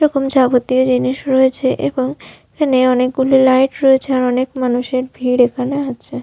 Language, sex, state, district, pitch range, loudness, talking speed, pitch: Bengali, female, West Bengal, Malda, 255-265 Hz, -15 LUFS, 155 wpm, 260 Hz